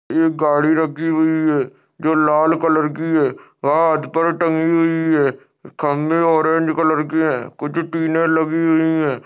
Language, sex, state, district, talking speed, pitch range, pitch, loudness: Hindi, male, Maharashtra, Aurangabad, 155 wpm, 155-165 Hz, 160 Hz, -17 LUFS